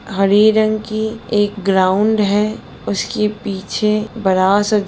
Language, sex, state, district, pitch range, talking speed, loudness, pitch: Hindi, female, Bihar, Sitamarhi, 200-215 Hz, 125 wpm, -16 LUFS, 210 Hz